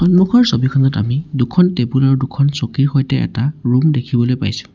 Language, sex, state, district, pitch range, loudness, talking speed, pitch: Assamese, male, Assam, Sonitpur, 125-145 Hz, -15 LUFS, 165 wpm, 135 Hz